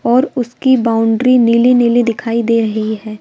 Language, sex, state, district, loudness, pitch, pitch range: Hindi, female, Madhya Pradesh, Bhopal, -13 LUFS, 235 Hz, 225-250 Hz